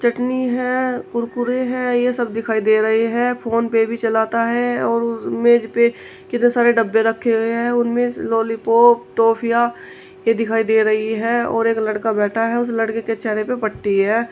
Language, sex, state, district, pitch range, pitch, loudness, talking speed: Hindi, female, Uttar Pradesh, Shamli, 225-240 Hz, 230 Hz, -18 LUFS, 190 wpm